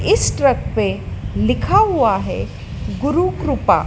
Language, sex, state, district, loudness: Hindi, female, Madhya Pradesh, Dhar, -18 LUFS